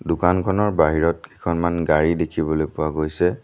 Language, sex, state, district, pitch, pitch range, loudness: Assamese, male, Assam, Sonitpur, 85 Hz, 80-90 Hz, -21 LUFS